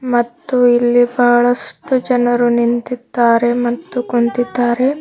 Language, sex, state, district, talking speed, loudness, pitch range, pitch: Kannada, female, Karnataka, Bidar, 85 wpm, -15 LUFS, 240-250 Hz, 245 Hz